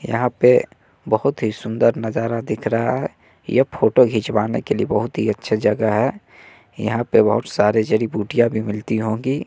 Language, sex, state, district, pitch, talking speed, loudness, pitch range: Hindi, male, Bihar, West Champaran, 115 Hz, 175 wpm, -19 LUFS, 110-120 Hz